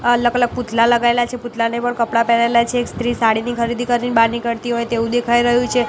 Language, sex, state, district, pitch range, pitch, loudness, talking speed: Gujarati, female, Gujarat, Gandhinagar, 235-240 Hz, 240 Hz, -17 LUFS, 225 wpm